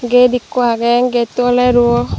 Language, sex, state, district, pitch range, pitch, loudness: Chakma, female, Tripura, Dhalai, 240-250 Hz, 245 Hz, -13 LUFS